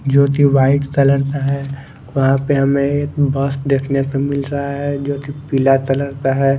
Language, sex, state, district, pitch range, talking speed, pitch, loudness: Hindi, male, Chandigarh, Chandigarh, 135-140 Hz, 180 wpm, 140 Hz, -16 LUFS